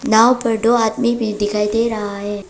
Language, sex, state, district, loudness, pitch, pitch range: Hindi, female, Arunachal Pradesh, Papum Pare, -17 LUFS, 220 Hz, 210-230 Hz